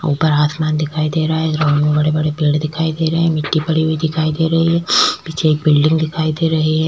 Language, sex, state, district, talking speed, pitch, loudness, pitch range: Hindi, female, Chhattisgarh, Korba, 235 wpm, 155 Hz, -16 LUFS, 155-160 Hz